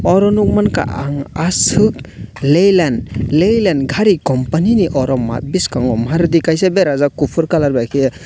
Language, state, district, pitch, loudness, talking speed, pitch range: Kokborok, Tripura, West Tripura, 145 Hz, -14 LUFS, 115 wpm, 125-180 Hz